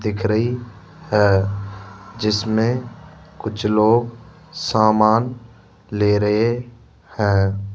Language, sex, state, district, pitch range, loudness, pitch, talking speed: Hindi, male, Rajasthan, Jaipur, 105-120 Hz, -19 LUFS, 110 Hz, 75 wpm